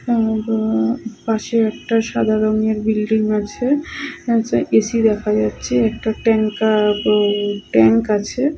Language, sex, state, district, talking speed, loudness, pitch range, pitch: Bengali, female, West Bengal, Purulia, 125 wpm, -18 LUFS, 210-225 Hz, 220 Hz